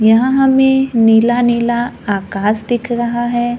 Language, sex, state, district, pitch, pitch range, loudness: Hindi, female, Maharashtra, Gondia, 240 Hz, 225-245 Hz, -14 LUFS